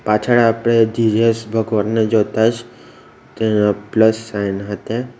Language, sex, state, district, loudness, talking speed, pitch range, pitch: Gujarati, male, Gujarat, Valsad, -17 LUFS, 115 wpm, 105-115 Hz, 110 Hz